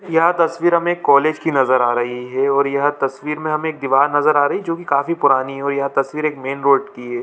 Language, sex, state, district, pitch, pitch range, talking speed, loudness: Hindi, male, Jharkhand, Sahebganj, 140 Hz, 135-155 Hz, 265 wpm, -17 LUFS